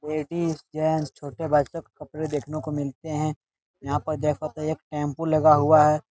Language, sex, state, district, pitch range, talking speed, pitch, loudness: Hindi, male, Bihar, Jahanabad, 150-155 Hz, 205 wpm, 155 Hz, -24 LUFS